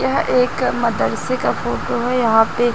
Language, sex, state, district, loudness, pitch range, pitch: Hindi, female, Chhattisgarh, Raipur, -18 LUFS, 230-250 Hz, 240 Hz